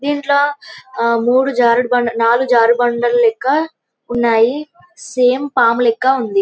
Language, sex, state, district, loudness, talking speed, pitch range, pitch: Telugu, female, Telangana, Karimnagar, -14 LUFS, 95 wpm, 235-285 Hz, 245 Hz